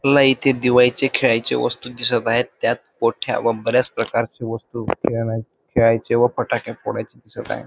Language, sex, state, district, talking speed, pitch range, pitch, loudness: Marathi, male, Maharashtra, Dhule, 150 wpm, 115-125 Hz, 120 Hz, -19 LUFS